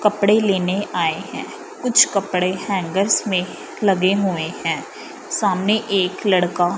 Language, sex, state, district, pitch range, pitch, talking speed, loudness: Hindi, female, Punjab, Fazilka, 185-205 Hz, 195 Hz, 125 wpm, -19 LUFS